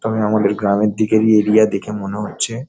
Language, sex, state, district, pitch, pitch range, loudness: Bengali, male, West Bengal, Paschim Medinipur, 105 Hz, 105-110 Hz, -16 LUFS